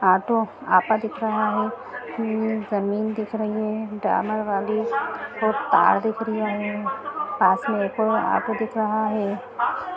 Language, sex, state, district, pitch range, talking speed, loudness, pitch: Hindi, female, Bihar, Gaya, 210-225 Hz, 150 wpm, -23 LUFS, 220 Hz